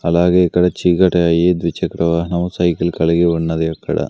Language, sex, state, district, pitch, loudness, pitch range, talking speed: Telugu, male, Andhra Pradesh, Sri Satya Sai, 85 Hz, -16 LUFS, 85-90 Hz, 145 wpm